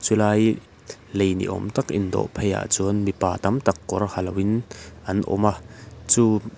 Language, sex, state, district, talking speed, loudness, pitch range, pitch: Mizo, male, Mizoram, Aizawl, 190 wpm, -23 LUFS, 95-110 Hz, 100 Hz